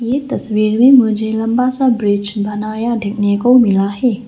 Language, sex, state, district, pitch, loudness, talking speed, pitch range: Hindi, female, Arunachal Pradesh, Lower Dibang Valley, 220 Hz, -14 LUFS, 170 wpm, 210-245 Hz